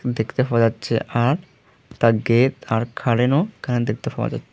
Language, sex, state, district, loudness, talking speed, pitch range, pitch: Bengali, male, Tripura, Unakoti, -21 LUFS, 145 wpm, 115-130 Hz, 120 Hz